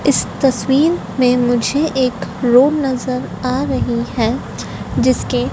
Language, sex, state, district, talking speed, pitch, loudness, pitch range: Hindi, female, Madhya Pradesh, Dhar, 120 wpm, 255 Hz, -16 LUFS, 245-270 Hz